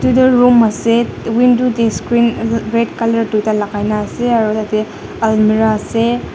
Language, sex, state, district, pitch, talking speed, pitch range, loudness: Nagamese, female, Nagaland, Dimapur, 230 Hz, 160 wpm, 215-235 Hz, -14 LUFS